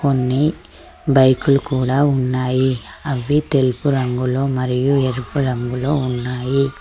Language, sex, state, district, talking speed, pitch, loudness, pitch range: Telugu, female, Telangana, Mahabubabad, 105 wpm, 130 Hz, -18 LUFS, 125-140 Hz